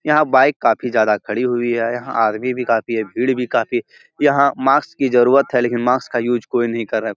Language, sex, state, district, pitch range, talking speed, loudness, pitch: Hindi, male, Bihar, Jahanabad, 115-130 Hz, 250 wpm, -17 LUFS, 120 Hz